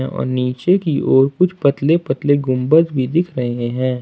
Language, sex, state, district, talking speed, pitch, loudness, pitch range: Hindi, male, Jharkhand, Ranchi, 195 wpm, 135 Hz, -17 LUFS, 130-160 Hz